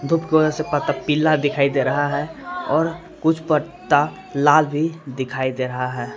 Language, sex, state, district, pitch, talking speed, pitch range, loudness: Hindi, male, Jharkhand, Palamu, 150 Hz, 185 wpm, 135-160 Hz, -20 LUFS